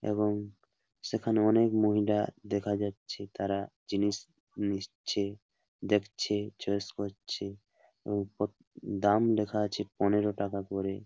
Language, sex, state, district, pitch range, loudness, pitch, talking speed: Bengali, male, West Bengal, Paschim Medinipur, 100-105 Hz, -31 LUFS, 105 Hz, 110 wpm